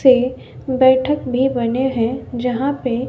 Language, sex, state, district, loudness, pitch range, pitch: Hindi, female, Bihar, West Champaran, -18 LUFS, 245-260 Hz, 255 Hz